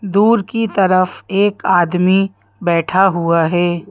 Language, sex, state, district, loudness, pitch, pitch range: Hindi, female, Madhya Pradesh, Bhopal, -15 LUFS, 190 Hz, 175-200 Hz